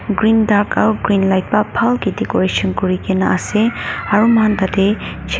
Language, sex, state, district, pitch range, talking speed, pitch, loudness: Nagamese, female, Nagaland, Dimapur, 190-220 Hz, 200 wpm, 205 Hz, -15 LUFS